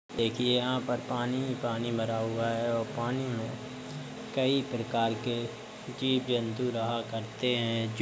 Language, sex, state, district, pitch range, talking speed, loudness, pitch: Hindi, male, Uttar Pradesh, Budaun, 115-125 Hz, 165 wpm, -31 LUFS, 120 Hz